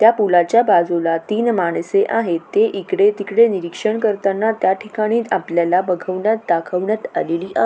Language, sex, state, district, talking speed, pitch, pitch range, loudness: Marathi, female, Maharashtra, Aurangabad, 140 wpm, 210 Hz, 175-230 Hz, -17 LUFS